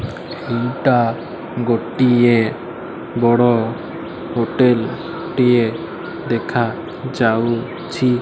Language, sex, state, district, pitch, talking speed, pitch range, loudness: Odia, male, Odisha, Malkangiri, 120 Hz, 50 wpm, 115-125 Hz, -18 LUFS